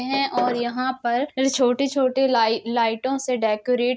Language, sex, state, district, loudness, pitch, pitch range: Hindi, female, Uttar Pradesh, Jalaun, -22 LUFS, 250 Hz, 240-265 Hz